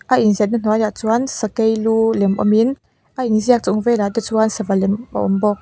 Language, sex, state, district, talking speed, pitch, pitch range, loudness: Mizo, female, Mizoram, Aizawl, 235 wpm, 220 Hz, 210-230 Hz, -17 LUFS